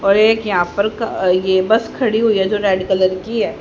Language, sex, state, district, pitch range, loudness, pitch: Hindi, female, Haryana, Rohtak, 190-225 Hz, -16 LUFS, 205 Hz